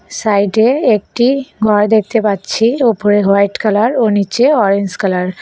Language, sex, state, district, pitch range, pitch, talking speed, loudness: Bengali, female, West Bengal, Cooch Behar, 200-230 Hz, 210 Hz, 145 wpm, -13 LUFS